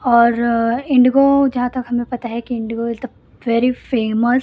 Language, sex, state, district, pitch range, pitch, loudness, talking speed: Hindi, female, Delhi, New Delhi, 235-255 Hz, 240 Hz, -17 LUFS, 190 wpm